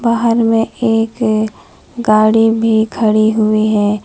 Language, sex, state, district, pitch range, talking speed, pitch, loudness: Hindi, female, West Bengal, Alipurduar, 215-225 Hz, 120 wpm, 220 Hz, -13 LUFS